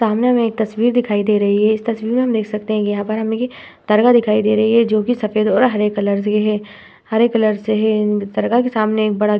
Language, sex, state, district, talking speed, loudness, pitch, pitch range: Hindi, female, Uttar Pradesh, Budaun, 255 wpm, -16 LUFS, 215 Hz, 210-230 Hz